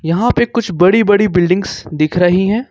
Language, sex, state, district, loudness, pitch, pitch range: Hindi, male, Jharkhand, Ranchi, -13 LUFS, 185 Hz, 175-215 Hz